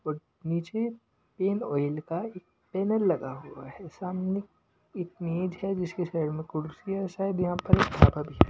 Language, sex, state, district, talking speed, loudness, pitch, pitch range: Hindi, male, Punjab, Pathankot, 175 wpm, -29 LUFS, 180 Hz, 160-195 Hz